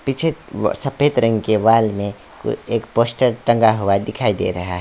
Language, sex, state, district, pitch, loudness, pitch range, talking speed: Hindi, male, West Bengal, Alipurduar, 115 Hz, -18 LUFS, 105-125 Hz, 200 wpm